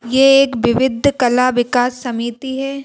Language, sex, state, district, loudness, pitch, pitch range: Hindi, female, Madhya Pradesh, Bhopal, -15 LUFS, 255 Hz, 245-270 Hz